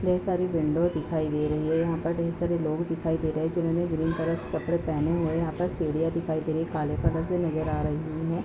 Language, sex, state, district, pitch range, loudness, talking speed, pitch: Hindi, female, Uttar Pradesh, Hamirpur, 160-170 Hz, -28 LUFS, 270 wpm, 165 Hz